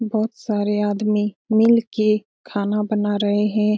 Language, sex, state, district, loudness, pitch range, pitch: Hindi, female, Bihar, Lakhisarai, -20 LUFS, 205-215 Hz, 210 Hz